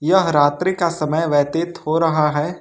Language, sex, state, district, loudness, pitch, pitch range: Hindi, male, Jharkhand, Ranchi, -18 LUFS, 160 Hz, 150-170 Hz